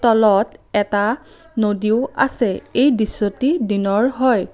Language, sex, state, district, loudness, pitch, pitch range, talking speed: Assamese, female, Assam, Kamrup Metropolitan, -18 LUFS, 220 Hz, 205-255 Hz, 105 wpm